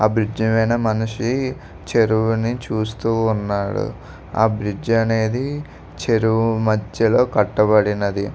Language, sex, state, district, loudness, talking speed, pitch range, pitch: Telugu, male, Andhra Pradesh, Visakhapatnam, -19 LUFS, 95 wpm, 105-115 Hz, 110 Hz